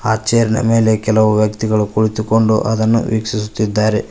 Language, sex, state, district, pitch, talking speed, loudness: Kannada, male, Karnataka, Koppal, 110 Hz, 115 wpm, -15 LUFS